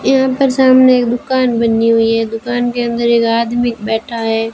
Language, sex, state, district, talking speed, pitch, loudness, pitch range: Hindi, female, Rajasthan, Bikaner, 200 wpm, 235 Hz, -13 LUFS, 225-250 Hz